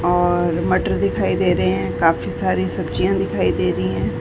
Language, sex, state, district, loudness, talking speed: Hindi, female, Uttar Pradesh, Varanasi, -19 LUFS, 185 wpm